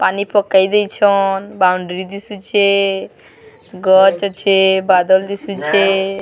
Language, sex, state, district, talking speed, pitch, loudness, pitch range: Odia, female, Odisha, Sambalpur, 95 wpm, 195 Hz, -14 LUFS, 190-200 Hz